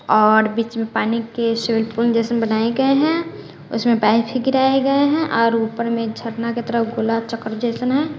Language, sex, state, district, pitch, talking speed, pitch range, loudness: Hindi, female, Bihar, West Champaran, 230 Hz, 200 wpm, 225-250 Hz, -19 LUFS